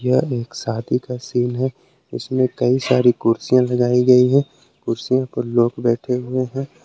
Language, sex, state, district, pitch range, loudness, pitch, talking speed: Hindi, male, Jharkhand, Palamu, 120-130 Hz, -19 LUFS, 125 Hz, 165 wpm